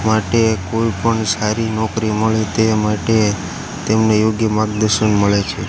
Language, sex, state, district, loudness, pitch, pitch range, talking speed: Gujarati, male, Gujarat, Gandhinagar, -16 LUFS, 110 Hz, 105-110 Hz, 135 wpm